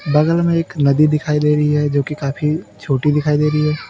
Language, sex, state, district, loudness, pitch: Hindi, male, Uttar Pradesh, Lalitpur, -16 LUFS, 150 Hz